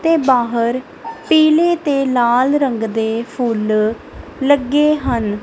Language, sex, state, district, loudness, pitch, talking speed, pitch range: Punjabi, female, Punjab, Kapurthala, -16 LUFS, 255 Hz, 110 wpm, 230-295 Hz